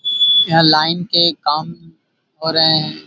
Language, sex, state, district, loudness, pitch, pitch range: Hindi, male, Jharkhand, Sahebganj, -13 LUFS, 160 Hz, 155-165 Hz